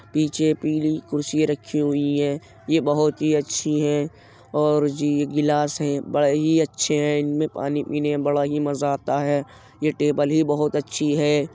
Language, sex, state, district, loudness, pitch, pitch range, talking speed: Hindi, male, Uttar Pradesh, Jyotiba Phule Nagar, -22 LUFS, 150 Hz, 145-150 Hz, 180 wpm